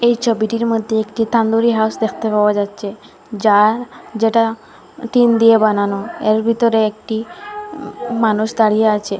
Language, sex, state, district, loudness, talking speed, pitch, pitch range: Bengali, female, Assam, Hailakandi, -16 LUFS, 130 wpm, 220 Hz, 215-230 Hz